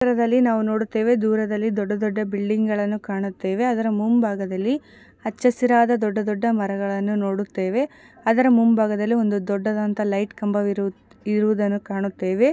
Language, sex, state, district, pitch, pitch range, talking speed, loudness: Kannada, female, Karnataka, Gulbarga, 215 Hz, 205-230 Hz, 120 wpm, -22 LUFS